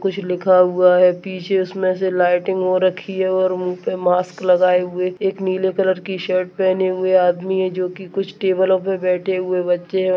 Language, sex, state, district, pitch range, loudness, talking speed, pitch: Hindi, male, Chhattisgarh, Balrampur, 180-190 Hz, -18 LUFS, 205 wpm, 185 Hz